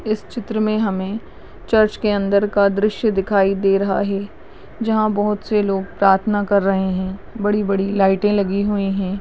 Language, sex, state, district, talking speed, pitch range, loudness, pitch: Hindi, male, Maharashtra, Sindhudurg, 175 wpm, 195-210 Hz, -18 LUFS, 205 Hz